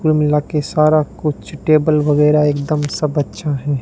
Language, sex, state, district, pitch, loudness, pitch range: Hindi, male, Rajasthan, Bikaner, 150 Hz, -16 LUFS, 145-155 Hz